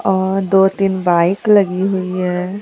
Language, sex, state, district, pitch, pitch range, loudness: Hindi, female, Bihar, Katihar, 190 Hz, 185-195 Hz, -15 LUFS